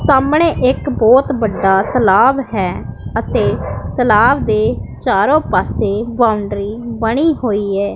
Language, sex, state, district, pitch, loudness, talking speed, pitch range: Punjabi, female, Punjab, Pathankot, 225 Hz, -14 LUFS, 115 wpm, 205-265 Hz